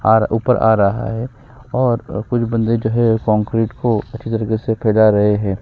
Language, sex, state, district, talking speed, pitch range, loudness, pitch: Hindi, female, Chhattisgarh, Sukma, 190 wpm, 110-115 Hz, -17 LUFS, 115 Hz